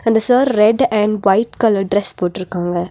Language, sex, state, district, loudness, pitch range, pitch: Tamil, female, Tamil Nadu, Nilgiris, -15 LUFS, 185-225 Hz, 210 Hz